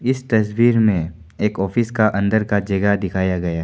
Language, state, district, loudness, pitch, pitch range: Hindi, Arunachal Pradesh, Papum Pare, -18 LUFS, 105 Hz, 95-110 Hz